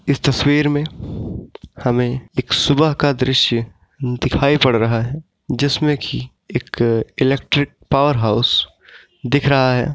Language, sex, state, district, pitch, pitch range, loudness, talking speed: Hindi, male, Uttar Pradesh, Ghazipur, 130 Hz, 120-145 Hz, -17 LUFS, 125 wpm